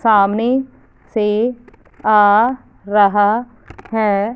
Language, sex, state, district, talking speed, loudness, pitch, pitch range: Hindi, female, Punjab, Fazilka, 70 wpm, -16 LUFS, 215 Hz, 205-235 Hz